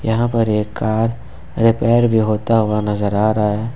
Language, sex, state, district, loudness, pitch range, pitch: Hindi, male, Jharkhand, Ranchi, -17 LUFS, 105-115 Hz, 110 Hz